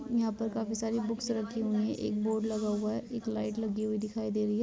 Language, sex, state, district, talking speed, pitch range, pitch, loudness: Hindi, female, Bihar, Vaishali, 270 wpm, 215-225 Hz, 220 Hz, -33 LUFS